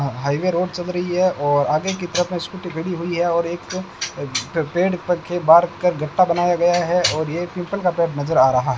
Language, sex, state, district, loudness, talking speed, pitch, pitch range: Hindi, male, Rajasthan, Bikaner, -20 LUFS, 225 wpm, 175 Hz, 160-180 Hz